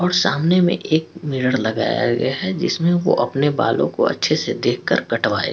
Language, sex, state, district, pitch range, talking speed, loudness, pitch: Hindi, male, Bihar, Patna, 140-180 Hz, 195 wpm, -19 LUFS, 165 Hz